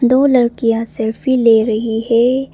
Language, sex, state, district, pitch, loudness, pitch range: Hindi, female, Arunachal Pradesh, Papum Pare, 230 Hz, -14 LUFS, 225-255 Hz